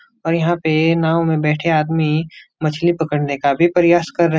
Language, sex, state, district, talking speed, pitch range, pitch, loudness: Hindi, male, Uttar Pradesh, Etah, 205 wpm, 155-170 Hz, 165 Hz, -17 LUFS